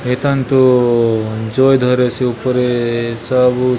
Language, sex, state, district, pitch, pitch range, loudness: Chhattisgarhi, male, Chhattisgarh, Bastar, 125 Hz, 120-130 Hz, -14 LUFS